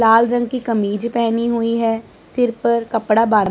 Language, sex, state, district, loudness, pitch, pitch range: Hindi, female, Punjab, Pathankot, -18 LUFS, 230 Hz, 225-235 Hz